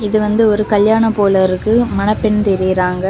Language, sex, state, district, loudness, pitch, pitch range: Tamil, female, Tamil Nadu, Kanyakumari, -14 LUFS, 210 Hz, 190-215 Hz